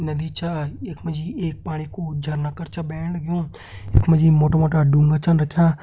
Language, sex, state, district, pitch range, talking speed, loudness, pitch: Hindi, male, Uttarakhand, Uttarkashi, 150-165 Hz, 215 wpm, -21 LUFS, 155 Hz